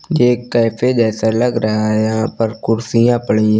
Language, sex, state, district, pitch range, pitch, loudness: Hindi, male, Uttar Pradesh, Lucknow, 110-120 Hz, 115 Hz, -15 LUFS